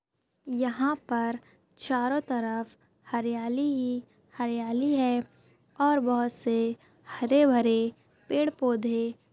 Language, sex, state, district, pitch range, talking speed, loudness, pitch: Hindi, female, Maharashtra, Sindhudurg, 235-270 Hz, 95 wpm, -28 LUFS, 245 Hz